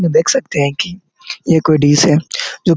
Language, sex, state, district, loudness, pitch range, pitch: Hindi, male, Chhattisgarh, Korba, -14 LUFS, 150-240 Hz, 170 Hz